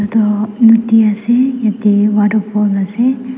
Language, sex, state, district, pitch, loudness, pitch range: Nagamese, female, Nagaland, Dimapur, 215 Hz, -12 LUFS, 210-230 Hz